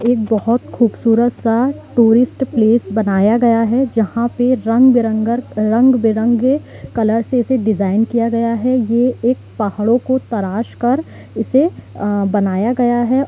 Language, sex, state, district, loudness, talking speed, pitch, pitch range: Hindi, female, Jharkhand, Sahebganj, -15 LUFS, 145 wpm, 235 Hz, 225-245 Hz